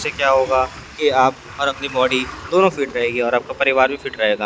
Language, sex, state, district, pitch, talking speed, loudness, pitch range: Hindi, male, Chhattisgarh, Raipur, 130 Hz, 230 wpm, -18 LUFS, 120-140 Hz